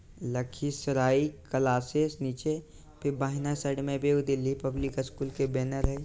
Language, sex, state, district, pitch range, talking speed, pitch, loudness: Maithili, male, Bihar, Lakhisarai, 135-145 Hz, 140 wpm, 135 Hz, -30 LUFS